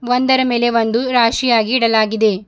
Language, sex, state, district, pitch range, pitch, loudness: Kannada, female, Karnataka, Bidar, 225-250 Hz, 235 Hz, -15 LUFS